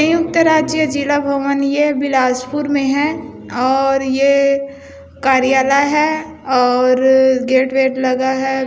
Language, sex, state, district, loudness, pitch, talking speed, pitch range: Hindi, female, Chhattisgarh, Bilaspur, -15 LUFS, 275 Hz, 130 wpm, 265-290 Hz